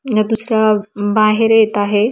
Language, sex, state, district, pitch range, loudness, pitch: Marathi, female, Maharashtra, Aurangabad, 205-220 Hz, -14 LUFS, 215 Hz